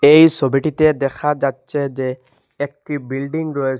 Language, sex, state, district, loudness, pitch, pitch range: Bengali, male, Assam, Hailakandi, -18 LUFS, 140 Hz, 135-150 Hz